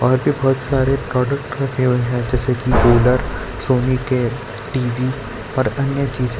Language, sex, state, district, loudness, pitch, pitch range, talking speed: Hindi, male, Gujarat, Valsad, -18 LUFS, 125 Hz, 125-135 Hz, 160 wpm